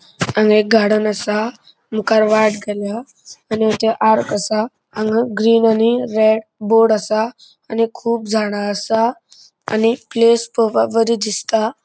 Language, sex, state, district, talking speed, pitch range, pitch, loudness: Konkani, male, Goa, North and South Goa, 130 wpm, 215-230 Hz, 220 Hz, -16 LUFS